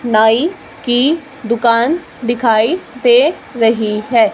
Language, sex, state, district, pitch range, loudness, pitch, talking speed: Hindi, female, Haryana, Charkhi Dadri, 225-315 Hz, -14 LUFS, 240 Hz, 95 wpm